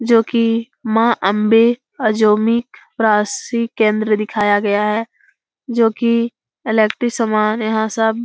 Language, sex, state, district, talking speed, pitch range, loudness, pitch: Hindi, female, Bihar, Jahanabad, 110 wpm, 215-235 Hz, -16 LUFS, 225 Hz